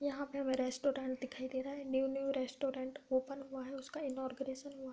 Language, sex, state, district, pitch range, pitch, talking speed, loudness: Hindi, female, Uttar Pradesh, Budaun, 260-275 Hz, 270 Hz, 220 wpm, -40 LUFS